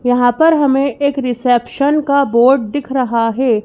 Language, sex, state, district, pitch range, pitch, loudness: Hindi, male, Madhya Pradesh, Bhopal, 245-280 Hz, 265 Hz, -14 LUFS